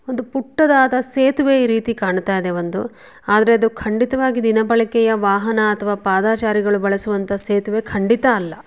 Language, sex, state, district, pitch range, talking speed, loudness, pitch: Kannada, female, Karnataka, Shimoga, 200-250 Hz, 120 wpm, -17 LUFS, 225 Hz